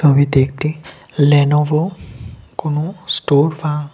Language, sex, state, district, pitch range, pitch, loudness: Bengali, male, Tripura, West Tripura, 140-155 Hz, 150 Hz, -16 LUFS